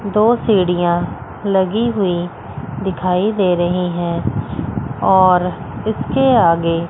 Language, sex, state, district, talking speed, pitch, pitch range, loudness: Hindi, female, Chandigarh, Chandigarh, 95 wpm, 180 Hz, 175-205 Hz, -17 LUFS